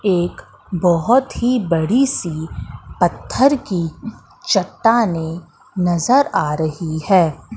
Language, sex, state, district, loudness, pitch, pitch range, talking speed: Hindi, female, Madhya Pradesh, Katni, -18 LUFS, 180 Hz, 165-240 Hz, 95 wpm